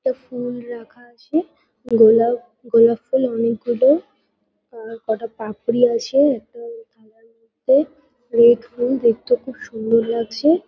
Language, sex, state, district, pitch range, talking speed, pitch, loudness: Bengali, female, West Bengal, Kolkata, 230-260 Hz, 120 wpm, 240 Hz, -18 LUFS